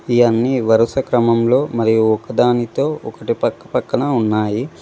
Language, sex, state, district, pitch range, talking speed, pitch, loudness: Telugu, male, Telangana, Mahabubabad, 110-120 Hz, 125 wpm, 115 Hz, -16 LUFS